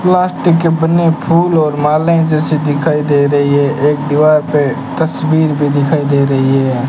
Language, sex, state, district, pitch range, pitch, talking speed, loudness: Hindi, male, Rajasthan, Bikaner, 145-160 Hz, 150 Hz, 175 wpm, -12 LUFS